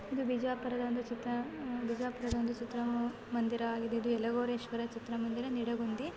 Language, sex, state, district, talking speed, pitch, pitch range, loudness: Kannada, female, Karnataka, Bijapur, 115 wpm, 240 Hz, 235-245 Hz, -36 LUFS